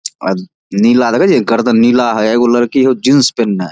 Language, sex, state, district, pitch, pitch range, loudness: Maithili, male, Bihar, Samastipur, 120 Hz, 105-125 Hz, -11 LUFS